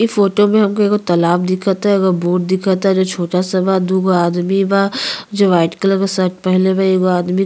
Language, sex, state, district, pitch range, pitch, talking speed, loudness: Bhojpuri, female, Uttar Pradesh, Ghazipur, 180-195 Hz, 190 Hz, 200 wpm, -15 LUFS